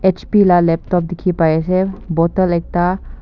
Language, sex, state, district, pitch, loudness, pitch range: Nagamese, female, Nagaland, Kohima, 180 Hz, -16 LUFS, 170-185 Hz